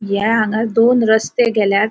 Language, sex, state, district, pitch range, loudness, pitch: Konkani, female, Goa, North and South Goa, 210-230 Hz, -15 LUFS, 220 Hz